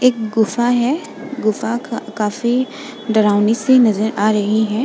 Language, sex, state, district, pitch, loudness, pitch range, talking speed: Hindi, female, Uttar Pradesh, Jalaun, 230 Hz, -17 LUFS, 215-250 Hz, 135 wpm